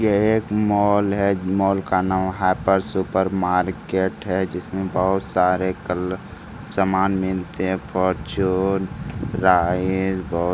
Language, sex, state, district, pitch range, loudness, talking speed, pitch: Hindi, male, Bihar, Jamui, 90-95 Hz, -21 LUFS, 125 wpm, 95 Hz